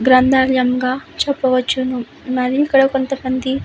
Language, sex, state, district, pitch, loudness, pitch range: Telugu, female, Andhra Pradesh, Visakhapatnam, 260 Hz, -16 LUFS, 255-270 Hz